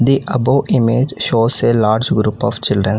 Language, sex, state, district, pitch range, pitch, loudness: English, female, Telangana, Hyderabad, 110-130 Hz, 120 Hz, -15 LUFS